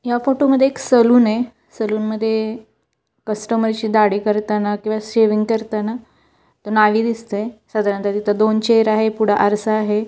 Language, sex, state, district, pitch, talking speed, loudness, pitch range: Marathi, female, Maharashtra, Chandrapur, 220 Hz, 145 wpm, -17 LUFS, 210-230 Hz